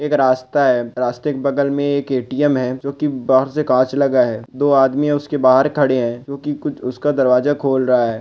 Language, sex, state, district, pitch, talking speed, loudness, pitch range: Hindi, male, Maharashtra, Sindhudurg, 135 Hz, 225 wpm, -17 LUFS, 125-145 Hz